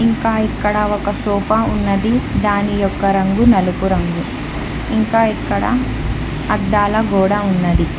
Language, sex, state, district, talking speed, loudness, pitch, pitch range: Telugu, female, Telangana, Hyderabad, 115 wpm, -16 LUFS, 205 Hz, 195-220 Hz